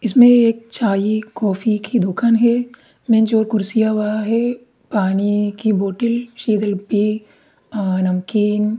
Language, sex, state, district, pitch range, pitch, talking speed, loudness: Hindi, male, Uttarakhand, Tehri Garhwal, 205-235 Hz, 215 Hz, 125 wpm, -17 LUFS